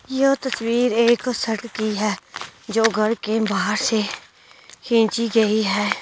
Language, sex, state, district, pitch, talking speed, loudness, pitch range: Hindi, female, Delhi, New Delhi, 225 Hz, 140 wpm, -21 LUFS, 215-235 Hz